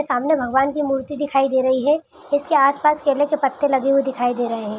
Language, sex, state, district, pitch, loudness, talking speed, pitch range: Hindi, female, Bihar, Araria, 275 Hz, -19 LUFS, 250 wpm, 260-290 Hz